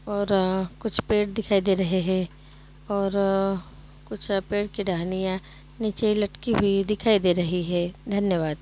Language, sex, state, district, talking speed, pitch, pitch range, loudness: Hindi, female, Uttar Pradesh, Jyotiba Phule Nagar, 155 wpm, 195 Hz, 180-205 Hz, -25 LUFS